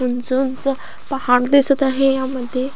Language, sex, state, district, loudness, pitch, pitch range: Marathi, female, Maharashtra, Aurangabad, -16 LUFS, 265 Hz, 255-270 Hz